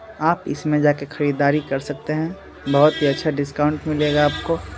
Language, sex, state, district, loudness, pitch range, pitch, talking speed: Hindi, male, Bihar, Muzaffarpur, -20 LUFS, 145-155 Hz, 150 Hz, 175 wpm